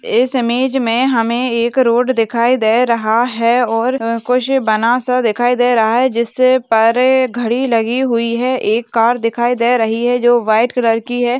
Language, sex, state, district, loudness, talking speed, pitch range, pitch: Hindi, female, Maharashtra, Sindhudurg, -14 LUFS, 180 wpm, 230-250 Hz, 240 Hz